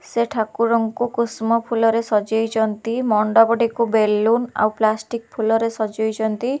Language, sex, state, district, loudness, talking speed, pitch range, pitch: Odia, female, Odisha, Khordha, -19 LUFS, 100 wpm, 220-230 Hz, 225 Hz